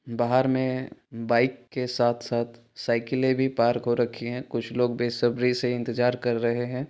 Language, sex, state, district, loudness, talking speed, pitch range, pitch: Maithili, male, Bihar, Supaul, -26 LUFS, 175 wpm, 120-125 Hz, 120 Hz